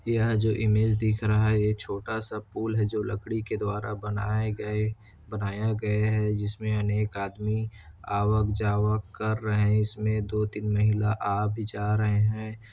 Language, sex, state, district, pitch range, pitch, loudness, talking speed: Hindi, male, Chhattisgarh, Kabirdham, 105-110 Hz, 105 Hz, -27 LUFS, 175 wpm